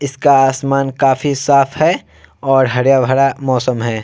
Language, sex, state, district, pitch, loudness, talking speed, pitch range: Hindi, male, Bihar, Vaishali, 135 Hz, -14 LUFS, 150 wpm, 130-140 Hz